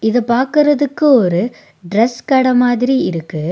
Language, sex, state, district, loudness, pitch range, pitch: Tamil, female, Tamil Nadu, Nilgiris, -14 LUFS, 195-265 Hz, 245 Hz